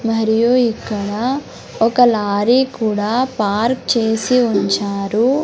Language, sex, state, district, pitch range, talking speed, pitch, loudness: Telugu, male, Andhra Pradesh, Sri Satya Sai, 210-245 Hz, 90 wpm, 225 Hz, -16 LUFS